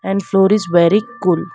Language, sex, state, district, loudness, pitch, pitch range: English, female, Karnataka, Bangalore, -14 LUFS, 195 Hz, 175-205 Hz